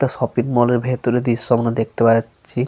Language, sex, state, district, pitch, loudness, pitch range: Bengali, male, Jharkhand, Sahebganj, 120 Hz, -18 LUFS, 115-125 Hz